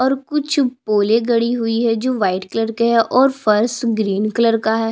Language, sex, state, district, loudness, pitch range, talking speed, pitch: Hindi, female, Chhattisgarh, Jashpur, -17 LUFS, 220-250 Hz, 205 wpm, 230 Hz